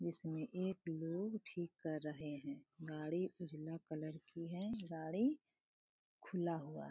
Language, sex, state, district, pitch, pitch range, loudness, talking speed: Hindi, female, Bihar, Gopalganj, 165 Hz, 155-180 Hz, -45 LUFS, 140 wpm